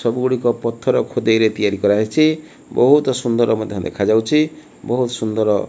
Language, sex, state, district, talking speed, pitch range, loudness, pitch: Odia, male, Odisha, Malkangiri, 135 wpm, 110-130 Hz, -17 LUFS, 115 Hz